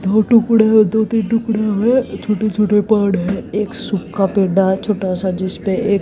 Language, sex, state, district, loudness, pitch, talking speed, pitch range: Hindi, female, Haryana, Jhajjar, -16 LUFS, 210 Hz, 180 wpm, 195-220 Hz